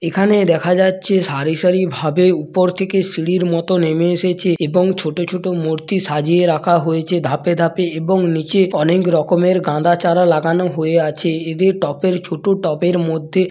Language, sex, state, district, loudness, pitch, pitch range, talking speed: Bengali, male, West Bengal, Paschim Medinipur, -16 LUFS, 175 Hz, 160-185 Hz, 150 wpm